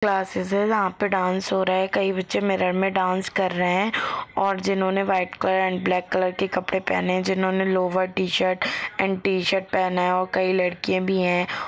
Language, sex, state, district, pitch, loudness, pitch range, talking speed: Hindi, female, Jharkhand, Jamtara, 190 Hz, -23 LUFS, 185-195 Hz, 205 wpm